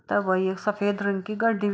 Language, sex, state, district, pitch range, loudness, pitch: Hindi, female, Bihar, Saharsa, 190-210 Hz, -25 LUFS, 205 Hz